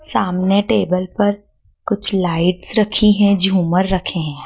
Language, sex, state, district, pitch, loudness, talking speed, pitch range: Hindi, female, Madhya Pradesh, Dhar, 190 Hz, -16 LUFS, 135 wpm, 180-205 Hz